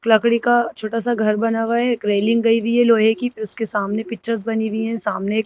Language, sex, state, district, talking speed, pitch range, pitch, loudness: Hindi, female, Madhya Pradesh, Bhopal, 275 wpm, 220-230 Hz, 225 Hz, -19 LUFS